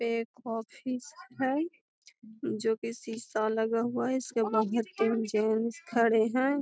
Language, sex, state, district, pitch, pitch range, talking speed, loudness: Magahi, female, Bihar, Gaya, 230 Hz, 225-255 Hz, 155 wpm, -31 LUFS